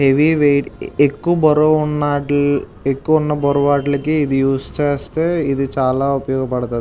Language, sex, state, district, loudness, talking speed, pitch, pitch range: Telugu, male, Andhra Pradesh, Visakhapatnam, -16 LUFS, 130 wpm, 145 Hz, 135-150 Hz